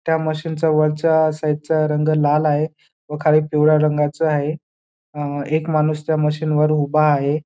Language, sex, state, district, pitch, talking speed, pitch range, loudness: Marathi, male, Maharashtra, Dhule, 155 Hz, 175 wpm, 150-155 Hz, -18 LUFS